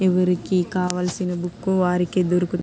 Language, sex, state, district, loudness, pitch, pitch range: Telugu, female, Andhra Pradesh, Krishna, -22 LUFS, 180 Hz, 180-185 Hz